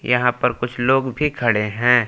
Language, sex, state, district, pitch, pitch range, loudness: Hindi, male, Jharkhand, Palamu, 125 Hz, 120-130 Hz, -19 LUFS